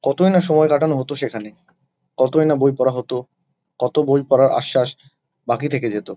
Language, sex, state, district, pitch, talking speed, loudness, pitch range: Bengali, male, West Bengal, Kolkata, 135 Hz, 175 wpm, -18 LUFS, 125-145 Hz